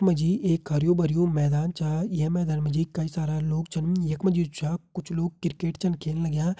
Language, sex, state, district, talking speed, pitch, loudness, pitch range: Hindi, male, Uttarakhand, Uttarkashi, 220 wpm, 165 Hz, -26 LUFS, 155-175 Hz